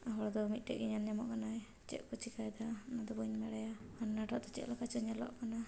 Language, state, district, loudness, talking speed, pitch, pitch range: Santali, Jharkhand, Sahebganj, -42 LUFS, 230 wpm, 225 Hz, 220-230 Hz